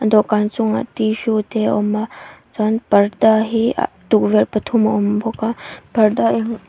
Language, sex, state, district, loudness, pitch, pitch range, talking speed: Mizo, female, Mizoram, Aizawl, -17 LUFS, 215 Hz, 210-225 Hz, 160 wpm